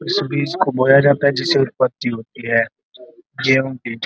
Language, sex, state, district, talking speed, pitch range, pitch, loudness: Hindi, male, Uttar Pradesh, Gorakhpur, 190 wpm, 120-140 Hz, 130 Hz, -17 LUFS